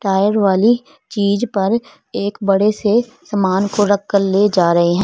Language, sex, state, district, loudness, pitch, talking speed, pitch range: Hindi, female, Punjab, Fazilka, -16 LUFS, 205 Hz, 180 wpm, 195-220 Hz